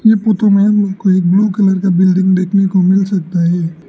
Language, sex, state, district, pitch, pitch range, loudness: Hindi, male, Arunachal Pradesh, Lower Dibang Valley, 190 Hz, 185-200 Hz, -12 LUFS